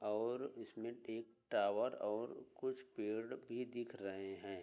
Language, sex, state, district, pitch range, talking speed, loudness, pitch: Hindi, male, Uttar Pradesh, Budaun, 105-120 Hz, 145 wpm, -44 LUFS, 115 Hz